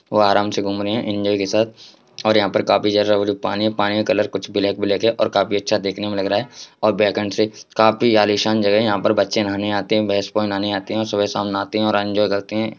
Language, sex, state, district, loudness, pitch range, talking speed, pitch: Hindi, male, Bihar, Jahanabad, -19 LUFS, 100-110 Hz, 260 wpm, 105 Hz